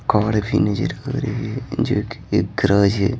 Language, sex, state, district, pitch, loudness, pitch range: Hindi, male, Bihar, Patna, 110 Hz, -20 LUFS, 105-125 Hz